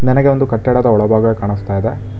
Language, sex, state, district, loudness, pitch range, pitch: Kannada, male, Karnataka, Bangalore, -14 LUFS, 105-125 Hz, 115 Hz